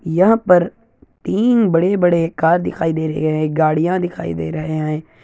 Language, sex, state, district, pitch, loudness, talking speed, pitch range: Hindi, male, Andhra Pradesh, Anantapur, 165 Hz, -17 LUFS, 160 wpm, 155-180 Hz